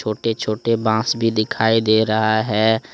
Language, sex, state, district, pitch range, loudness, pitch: Hindi, male, Jharkhand, Deoghar, 110-115 Hz, -18 LUFS, 110 Hz